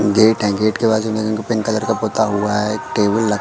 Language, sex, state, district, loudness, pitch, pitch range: Hindi, male, Madhya Pradesh, Katni, -17 LUFS, 110 Hz, 105-110 Hz